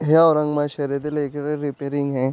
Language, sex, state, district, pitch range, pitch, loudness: Marathi, male, Maharashtra, Aurangabad, 140-150 Hz, 145 Hz, -21 LUFS